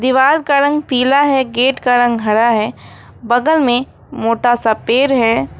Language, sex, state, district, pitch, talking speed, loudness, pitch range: Hindi, female, West Bengal, Alipurduar, 250 Hz, 170 wpm, -14 LUFS, 230-270 Hz